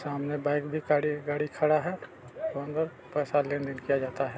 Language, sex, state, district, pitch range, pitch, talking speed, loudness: Hindi, male, Chhattisgarh, Balrampur, 140-150 Hz, 145 Hz, 150 wpm, -30 LUFS